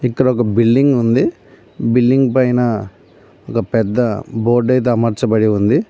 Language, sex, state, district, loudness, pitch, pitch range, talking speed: Telugu, male, Telangana, Mahabubabad, -15 LUFS, 120 Hz, 110-125 Hz, 100 wpm